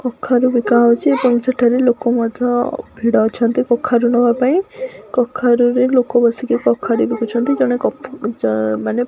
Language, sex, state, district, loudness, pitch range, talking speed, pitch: Odia, female, Odisha, Khordha, -16 LUFS, 235-255 Hz, 130 wpm, 245 Hz